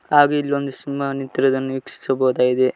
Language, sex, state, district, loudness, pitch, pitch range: Kannada, male, Karnataka, Koppal, -20 LUFS, 135 Hz, 130-140 Hz